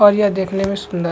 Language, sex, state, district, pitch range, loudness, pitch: Hindi, male, Chhattisgarh, Rajnandgaon, 190-205 Hz, -18 LUFS, 195 Hz